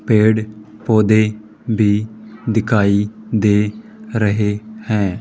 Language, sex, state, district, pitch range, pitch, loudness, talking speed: Hindi, male, Rajasthan, Jaipur, 105-110 Hz, 110 Hz, -17 LUFS, 80 wpm